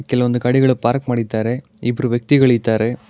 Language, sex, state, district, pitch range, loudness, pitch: Kannada, male, Karnataka, Bangalore, 120-130 Hz, -17 LUFS, 120 Hz